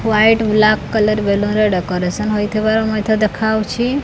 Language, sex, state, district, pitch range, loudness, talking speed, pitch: Odia, female, Odisha, Khordha, 210-220 Hz, -15 LUFS, 135 wpm, 215 Hz